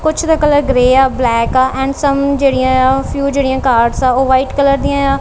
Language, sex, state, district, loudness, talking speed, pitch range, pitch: Punjabi, female, Punjab, Kapurthala, -12 LUFS, 230 wpm, 260-280 Hz, 270 Hz